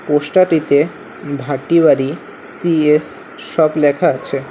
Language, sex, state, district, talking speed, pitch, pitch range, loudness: Bengali, male, West Bengal, Alipurduar, 80 wpm, 150 Hz, 140-165 Hz, -15 LUFS